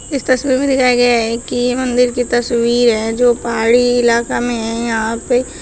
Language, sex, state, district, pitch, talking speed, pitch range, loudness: Hindi, female, Uttar Pradesh, Shamli, 245 Hz, 200 wpm, 235-250 Hz, -14 LUFS